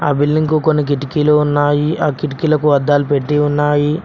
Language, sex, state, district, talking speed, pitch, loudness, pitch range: Telugu, male, Telangana, Mahabubabad, 150 wpm, 150 Hz, -15 LUFS, 145-150 Hz